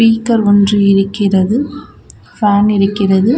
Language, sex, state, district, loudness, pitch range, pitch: Tamil, female, Tamil Nadu, Namakkal, -12 LUFS, 200-225 Hz, 205 Hz